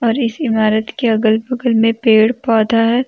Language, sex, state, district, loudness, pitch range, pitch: Hindi, female, Jharkhand, Deoghar, -14 LUFS, 220-245 Hz, 230 Hz